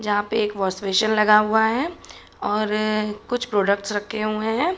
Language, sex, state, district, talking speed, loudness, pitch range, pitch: Hindi, female, Uttar Pradesh, Budaun, 175 wpm, -21 LUFS, 205-220 Hz, 215 Hz